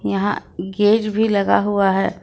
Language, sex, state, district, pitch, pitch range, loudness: Hindi, female, Jharkhand, Ranchi, 205 Hz, 195-210 Hz, -18 LUFS